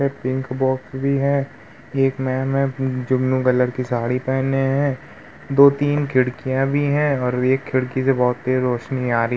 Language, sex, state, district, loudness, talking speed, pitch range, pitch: Hindi, male, Uttar Pradesh, Muzaffarnagar, -20 LUFS, 180 wpm, 130-135 Hz, 130 Hz